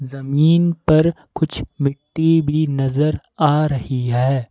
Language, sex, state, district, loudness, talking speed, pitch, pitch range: Hindi, male, Jharkhand, Ranchi, -18 LUFS, 120 wpm, 150 Hz, 135-160 Hz